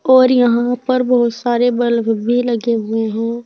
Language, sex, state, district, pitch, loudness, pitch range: Hindi, female, Uttar Pradesh, Saharanpur, 240 Hz, -15 LUFS, 230-245 Hz